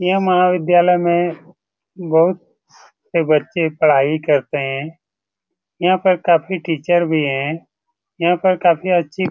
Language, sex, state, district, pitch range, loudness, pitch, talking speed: Hindi, male, Bihar, Saran, 160-180 Hz, -16 LUFS, 175 Hz, 130 wpm